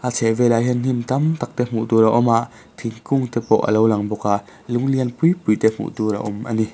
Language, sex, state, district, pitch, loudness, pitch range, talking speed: Mizo, male, Mizoram, Aizawl, 115 Hz, -19 LUFS, 110-125 Hz, 260 wpm